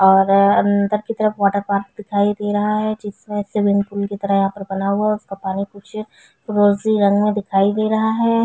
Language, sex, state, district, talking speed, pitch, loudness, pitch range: Hindi, female, Chhattisgarh, Bilaspur, 205 wpm, 205 Hz, -18 LUFS, 200-210 Hz